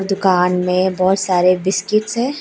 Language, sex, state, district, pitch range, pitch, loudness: Hindi, female, Arunachal Pradesh, Lower Dibang Valley, 185-200 Hz, 190 Hz, -16 LUFS